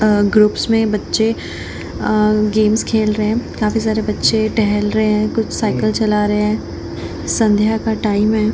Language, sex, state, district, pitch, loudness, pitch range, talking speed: Hindi, female, Jharkhand, Jamtara, 215 Hz, -16 LUFS, 210-220 Hz, 170 wpm